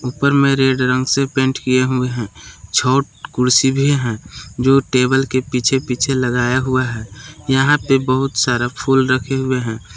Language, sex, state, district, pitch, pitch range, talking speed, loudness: Hindi, male, Jharkhand, Palamu, 130 Hz, 125-135 Hz, 160 wpm, -16 LUFS